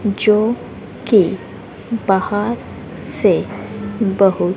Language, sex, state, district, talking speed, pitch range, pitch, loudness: Hindi, female, Haryana, Rohtak, 65 wpm, 195-220 Hz, 205 Hz, -17 LUFS